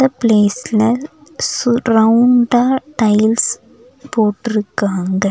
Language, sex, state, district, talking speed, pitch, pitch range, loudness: Tamil, female, Tamil Nadu, Nilgiris, 70 wpm, 230 Hz, 215-250 Hz, -15 LUFS